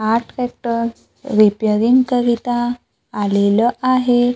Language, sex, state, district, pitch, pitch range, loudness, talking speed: Marathi, female, Maharashtra, Gondia, 240 Hz, 220-245 Hz, -17 LUFS, 80 wpm